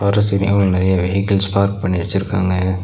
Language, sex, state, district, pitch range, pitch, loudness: Tamil, male, Tamil Nadu, Nilgiris, 95-100 Hz, 95 Hz, -17 LUFS